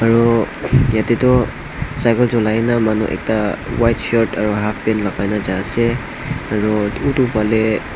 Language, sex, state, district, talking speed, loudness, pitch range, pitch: Nagamese, male, Nagaland, Dimapur, 130 wpm, -17 LUFS, 105-120 Hz, 110 Hz